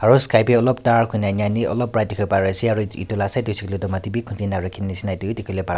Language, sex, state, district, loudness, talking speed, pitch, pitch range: Nagamese, male, Nagaland, Kohima, -20 LUFS, 330 wpm, 105 Hz, 100-115 Hz